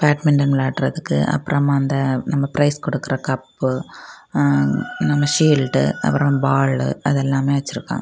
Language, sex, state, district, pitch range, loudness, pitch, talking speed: Tamil, female, Tamil Nadu, Kanyakumari, 130-145 Hz, -19 LUFS, 135 Hz, 120 wpm